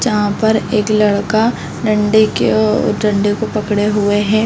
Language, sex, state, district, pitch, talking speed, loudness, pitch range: Hindi, female, Chhattisgarh, Bilaspur, 210 Hz, 160 wpm, -14 LUFS, 205-215 Hz